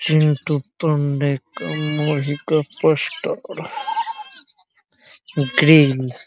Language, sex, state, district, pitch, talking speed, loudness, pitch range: Hindi, male, Bihar, Araria, 150 Hz, 75 wpm, -19 LUFS, 145-175 Hz